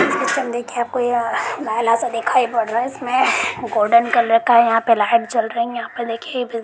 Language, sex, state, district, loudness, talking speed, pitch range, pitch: Hindi, female, Jharkhand, Jamtara, -18 LUFS, 170 wpm, 230-250 Hz, 235 Hz